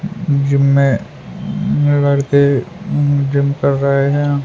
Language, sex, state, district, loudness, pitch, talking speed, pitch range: Hindi, male, Uttar Pradesh, Hamirpur, -15 LUFS, 140 Hz, 120 wpm, 140-145 Hz